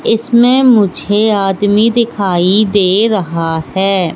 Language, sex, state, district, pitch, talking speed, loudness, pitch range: Hindi, female, Madhya Pradesh, Katni, 205 Hz, 100 wpm, -11 LUFS, 185-220 Hz